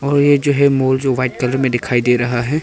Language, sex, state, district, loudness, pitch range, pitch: Hindi, male, Arunachal Pradesh, Papum Pare, -15 LUFS, 125-140 Hz, 130 Hz